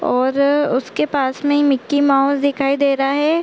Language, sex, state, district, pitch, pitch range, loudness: Hindi, female, Chhattisgarh, Korba, 280 Hz, 270-290 Hz, -17 LUFS